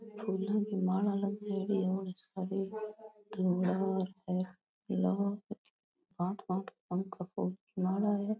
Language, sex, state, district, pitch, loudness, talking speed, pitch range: Rajasthani, female, Rajasthan, Nagaur, 195 Hz, -35 LUFS, 50 wpm, 185-205 Hz